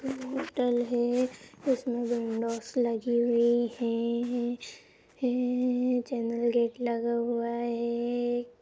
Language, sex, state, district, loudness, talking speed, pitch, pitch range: Hindi, female, Uttar Pradesh, Etah, -29 LUFS, 90 wpm, 240 Hz, 235-245 Hz